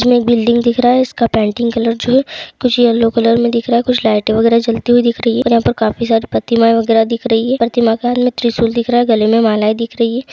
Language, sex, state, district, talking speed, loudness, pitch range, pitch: Hindi, female, Uttar Pradesh, Etah, 290 wpm, -13 LUFS, 230-240 Hz, 235 Hz